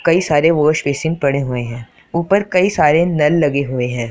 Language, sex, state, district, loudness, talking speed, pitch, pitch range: Hindi, male, Punjab, Pathankot, -15 LUFS, 205 wpm, 150 Hz, 135-170 Hz